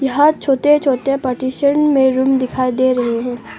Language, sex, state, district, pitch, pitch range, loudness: Hindi, female, Arunachal Pradesh, Longding, 265 Hz, 255-280 Hz, -15 LUFS